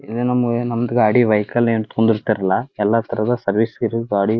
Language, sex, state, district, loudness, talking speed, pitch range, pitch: Kannada, male, Karnataka, Dharwad, -18 LUFS, 175 wpm, 110-120 Hz, 115 Hz